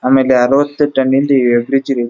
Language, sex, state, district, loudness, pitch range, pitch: Kannada, male, Karnataka, Dharwad, -12 LUFS, 125-140 Hz, 135 Hz